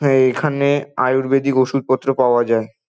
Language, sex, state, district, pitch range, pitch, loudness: Bengali, male, West Bengal, Dakshin Dinajpur, 125-135 Hz, 130 Hz, -17 LUFS